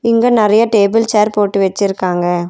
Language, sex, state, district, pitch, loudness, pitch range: Tamil, female, Tamil Nadu, Nilgiris, 210 Hz, -13 LUFS, 195-225 Hz